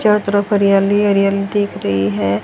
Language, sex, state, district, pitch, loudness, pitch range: Hindi, female, Haryana, Charkhi Dadri, 200 Hz, -15 LUFS, 170-205 Hz